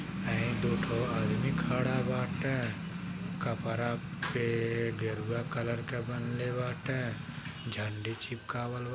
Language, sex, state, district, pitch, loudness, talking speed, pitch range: Bhojpuri, male, Uttar Pradesh, Gorakhpur, 120 Hz, -34 LUFS, 105 wpm, 115-135 Hz